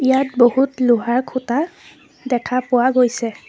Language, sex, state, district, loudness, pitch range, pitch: Assamese, female, Assam, Sonitpur, -17 LUFS, 240-260 Hz, 255 Hz